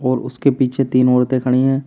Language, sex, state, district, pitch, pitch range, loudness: Hindi, male, Uttar Pradesh, Shamli, 130 Hz, 125-135 Hz, -16 LUFS